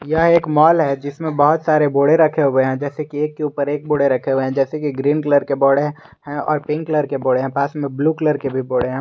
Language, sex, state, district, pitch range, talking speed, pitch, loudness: Hindi, male, Jharkhand, Garhwa, 140-155 Hz, 275 wpm, 145 Hz, -17 LUFS